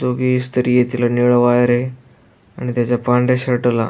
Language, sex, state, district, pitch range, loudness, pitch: Marathi, male, Maharashtra, Aurangabad, 120-125 Hz, -16 LUFS, 125 Hz